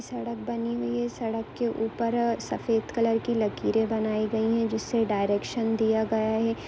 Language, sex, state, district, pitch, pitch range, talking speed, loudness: Hindi, female, Karnataka, Mysore, 225 Hz, 220-235 Hz, 170 wpm, -27 LUFS